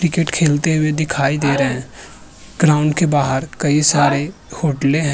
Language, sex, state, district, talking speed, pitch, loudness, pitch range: Hindi, male, Uttar Pradesh, Hamirpur, 165 wpm, 150 Hz, -16 LUFS, 140-160 Hz